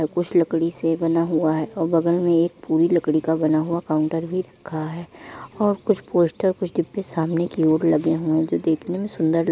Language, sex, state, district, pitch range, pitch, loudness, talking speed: Hindi, female, Uttar Pradesh, Muzaffarnagar, 160-175 Hz, 165 Hz, -21 LUFS, 225 wpm